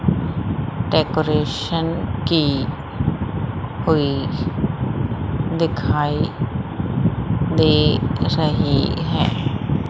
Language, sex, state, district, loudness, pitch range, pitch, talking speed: Hindi, female, Madhya Pradesh, Umaria, -20 LUFS, 125-160 Hz, 140 Hz, 40 wpm